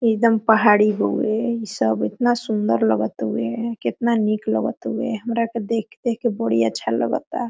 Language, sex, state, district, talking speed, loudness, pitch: Hindi, female, Jharkhand, Sahebganj, 150 wpm, -21 LUFS, 220 Hz